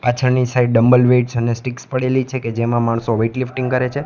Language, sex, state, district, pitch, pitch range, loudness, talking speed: Gujarati, male, Gujarat, Gandhinagar, 125 Hz, 120-130 Hz, -17 LUFS, 220 wpm